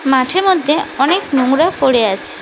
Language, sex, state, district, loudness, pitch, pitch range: Bengali, female, West Bengal, Cooch Behar, -14 LUFS, 275 Hz, 260-340 Hz